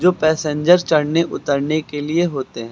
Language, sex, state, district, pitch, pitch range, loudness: Hindi, male, Uttar Pradesh, Lucknow, 155 Hz, 145-170 Hz, -18 LUFS